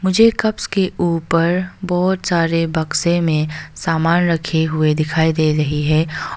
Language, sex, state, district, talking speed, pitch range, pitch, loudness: Hindi, female, Arunachal Pradesh, Papum Pare, 140 wpm, 155-180 Hz, 165 Hz, -17 LUFS